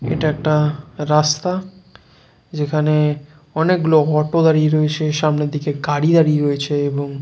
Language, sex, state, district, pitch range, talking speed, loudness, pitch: Bengali, male, West Bengal, Jalpaiguri, 150-155 Hz, 140 wpm, -17 LUFS, 150 Hz